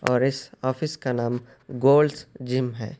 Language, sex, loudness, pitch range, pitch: Urdu, male, -24 LUFS, 125-140 Hz, 130 Hz